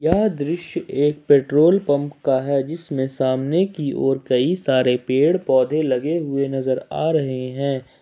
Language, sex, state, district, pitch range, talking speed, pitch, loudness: Hindi, male, Jharkhand, Ranchi, 130-155 Hz, 155 wpm, 140 Hz, -20 LUFS